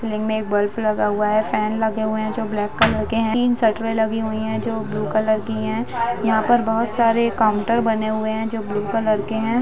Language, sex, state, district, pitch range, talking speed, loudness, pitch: Hindi, female, Bihar, Vaishali, 215-225 Hz, 245 wpm, -20 LUFS, 220 Hz